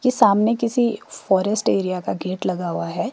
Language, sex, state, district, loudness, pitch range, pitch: Hindi, female, Himachal Pradesh, Shimla, -21 LUFS, 185-235 Hz, 200 Hz